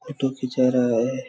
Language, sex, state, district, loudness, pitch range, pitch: Hindi, male, Chhattisgarh, Raigarh, -22 LUFS, 125-130 Hz, 130 Hz